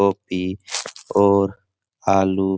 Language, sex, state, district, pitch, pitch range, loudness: Hindi, male, Bihar, Supaul, 100 Hz, 95-100 Hz, -20 LUFS